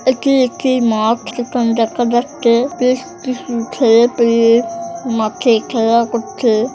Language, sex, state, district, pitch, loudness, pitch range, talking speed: Bengali, female, West Bengal, Jhargram, 235 Hz, -15 LUFS, 230-255 Hz, 115 wpm